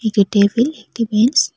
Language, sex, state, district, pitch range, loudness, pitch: Bengali, female, West Bengal, Cooch Behar, 205-235 Hz, -16 LUFS, 220 Hz